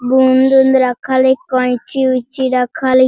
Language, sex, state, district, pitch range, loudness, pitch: Hindi, female, Bihar, Sitamarhi, 255-265 Hz, -13 LUFS, 260 Hz